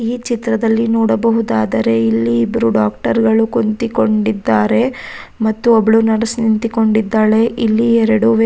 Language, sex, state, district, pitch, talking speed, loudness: Kannada, female, Karnataka, Raichur, 220 Hz, 70 wpm, -14 LUFS